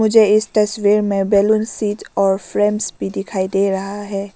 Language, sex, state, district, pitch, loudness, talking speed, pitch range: Hindi, female, Arunachal Pradesh, Lower Dibang Valley, 205 Hz, -17 LUFS, 180 wpm, 195-210 Hz